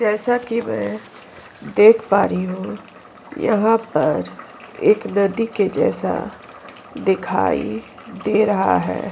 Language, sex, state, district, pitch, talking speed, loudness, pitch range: Hindi, female, Uttarakhand, Tehri Garhwal, 200 Hz, 110 wpm, -19 LUFS, 155-225 Hz